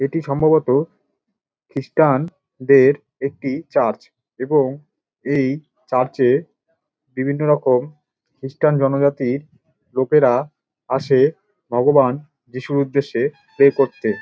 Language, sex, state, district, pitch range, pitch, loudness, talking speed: Bengali, male, West Bengal, Dakshin Dinajpur, 130-150 Hz, 140 Hz, -18 LUFS, 95 wpm